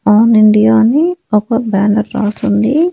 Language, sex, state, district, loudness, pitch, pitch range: Telugu, female, Andhra Pradesh, Annamaya, -11 LUFS, 220 Hz, 210-235 Hz